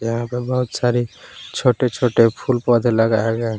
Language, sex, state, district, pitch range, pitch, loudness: Hindi, male, Jharkhand, Palamu, 115-125 Hz, 120 Hz, -18 LUFS